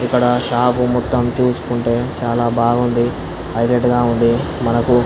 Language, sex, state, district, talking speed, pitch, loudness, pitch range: Telugu, male, Andhra Pradesh, Anantapur, 140 wpm, 120 Hz, -17 LUFS, 120-125 Hz